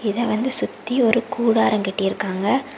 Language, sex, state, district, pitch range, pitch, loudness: Tamil, female, Tamil Nadu, Kanyakumari, 205-250 Hz, 230 Hz, -20 LUFS